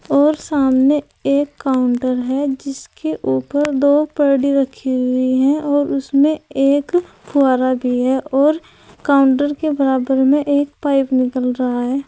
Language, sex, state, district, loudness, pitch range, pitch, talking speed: Hindi, female, Uttar Pradesh, Saharanpur, -17 LUFS, 255-290 Hz, 275 Hz, 140 wpm